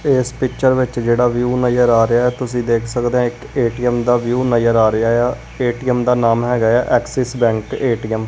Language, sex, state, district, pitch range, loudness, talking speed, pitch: Punjabi, male, Punjab, Kapurthala, 115-125 Hz, -16 LUFS, 210 wpm, 120 Hz